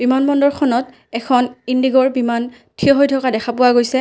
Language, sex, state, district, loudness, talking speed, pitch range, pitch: Assamese, female, Assam, Kamrup Metropolitan, -16 LUFS, 165 wpm, 240-265 Hz, 255 Hz